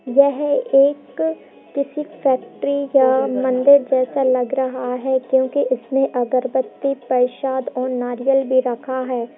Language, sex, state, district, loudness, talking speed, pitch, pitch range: Hindi, female, Bihar, Purnia, -19 LUFS, 130 wpm, 260 Hz, 255-275 Hz